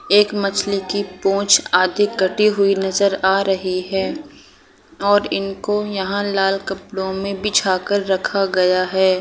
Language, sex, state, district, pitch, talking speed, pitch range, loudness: Hindi, female, Bihar, Gaya, 195 Hz, 145 wpm, 190-200 Hz, -18 LUFS